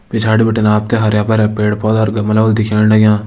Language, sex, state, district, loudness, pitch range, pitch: Hindi, male, Uttarakhand, Uttarkashi, -13 LUFS, 105-110 Hz, 110 Hz